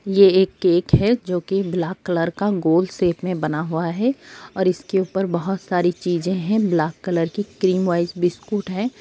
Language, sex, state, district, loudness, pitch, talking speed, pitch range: Hindi, female, Bihar, Gopalganj, -20 LUFS, 185 Hz, 195 wpm, 175-195 Hz